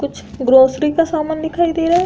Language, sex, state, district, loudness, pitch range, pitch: Hindi, female, Uttar Pradesh, Deoria, -15 LUFS, 285-330 Hz, 315 Hz